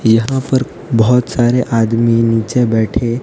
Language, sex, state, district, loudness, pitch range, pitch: Hindi, male, Odisha, Nuapada, -14 LUFS, 115-125 Hz, 115 Hz